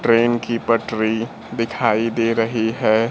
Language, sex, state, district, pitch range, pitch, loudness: Hindi, male, Bihar, Kaimur, 110-115 Hz, 115 Hz, -19 LUFS